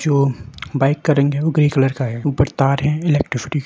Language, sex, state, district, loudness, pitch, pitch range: Hindi, male, Bihar, Samastipur, -18 LUFS, 140 Hz, 135-150 Hz